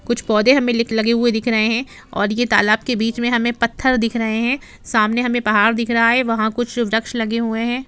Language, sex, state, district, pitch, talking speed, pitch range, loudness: Hindi, female, Jharkhand, Sahebganj, 230 Hz, 235 wpm, 225-240 Hz, -17 LUFS